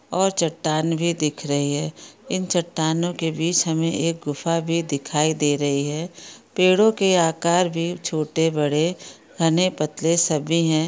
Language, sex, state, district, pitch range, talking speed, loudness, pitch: Hindi, female, Rajasthan, Churu, 155-170 Hz, 155 wpm, -21 LUFS, 165 Hz